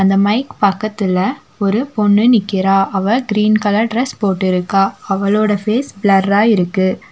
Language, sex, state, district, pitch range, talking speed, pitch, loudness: Tamil, female, Tamil Nadu, Nilgiris, 195-215 Hz, 125 wpm, 205 Hz, -15 LUFS